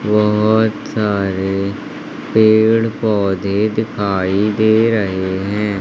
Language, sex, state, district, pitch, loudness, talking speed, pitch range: Hindi, male, Madhya Pradesh, Katni, 105 Hz, -16 LUFS, 80 wpm, 100-110 Hz